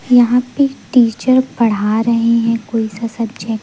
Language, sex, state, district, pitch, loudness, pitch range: Hindi, female, Madhya Pradesh, Umaria, 230 Hz, -15 LUFS, 225-245 Hz